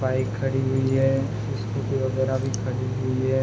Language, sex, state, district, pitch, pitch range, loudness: Hindi, male, Bihar, Madhepura, 130 Hz, 125-130 Hz, -25 LUFS